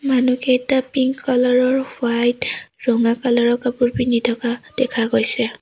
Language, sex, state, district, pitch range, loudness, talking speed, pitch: Assamese, female, Assam, Sonitpur, 240-260 Hz, -18 LUFS, 140 wpm, 250 Hz